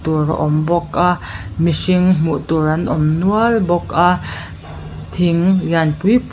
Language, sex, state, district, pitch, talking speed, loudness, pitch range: Mizo, female, Mizoram, Aizawl, 170 Hz, 160 wpm, -16 LUFS, 160-180 Hz